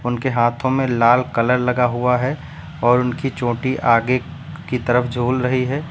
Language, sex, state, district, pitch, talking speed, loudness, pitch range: Hindi, male, Uttar Pradesh, Lucknow, 125 Hz, 170 wpm, -18 LUFS, 120-130 Hz